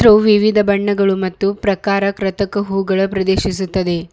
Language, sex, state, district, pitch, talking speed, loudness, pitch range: Kannada, male, Karnataka, Bidar, 195 Hz, 130 wpm, -16 LUFS, 190-205 Hz